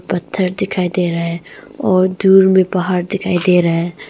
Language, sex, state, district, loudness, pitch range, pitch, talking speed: Hindi, female, Arunachal Pradesh, Longding, -15 LUFS, 175-190 Hz, 180 Hz, 190 wpm